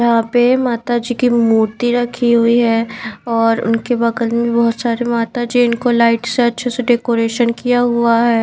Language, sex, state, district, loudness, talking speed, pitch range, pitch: Hindi, female, Maharashtra, Mumbai Suburban, -15 LUFS, 185 wpm, 230-240 Hz, 235 Hz